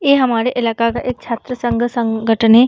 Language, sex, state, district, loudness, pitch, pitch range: Hindi, female, Bihar, Samastipur, -17 LUFS, 235 Hz, 230-250 Hz